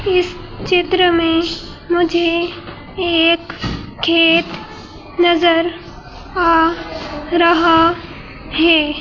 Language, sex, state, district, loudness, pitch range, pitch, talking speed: Hindi, female, Madhya Pradesh, Bhopal, -15 LUFS, 330-345 Hz, 340 Hz, 65 wpm